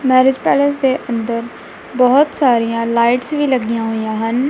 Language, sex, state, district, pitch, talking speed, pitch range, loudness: Punjabi, female, Punjab, Kapurthala, 250 Hz, 145 wpm, 230-265 Hz, -15 LUFS